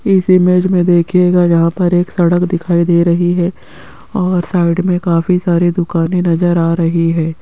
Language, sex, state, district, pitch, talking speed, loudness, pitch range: Hindi, female, Rajasthan, Jaipur, 175 Hz, 180 wpm, -13 LUFS, 170-180 Hz